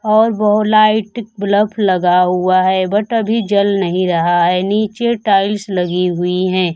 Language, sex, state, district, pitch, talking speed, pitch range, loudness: Hindi, female, Bihar, Kaimur, 200 Hz, 160 wpm, 180-215 Hz, -14 LUFS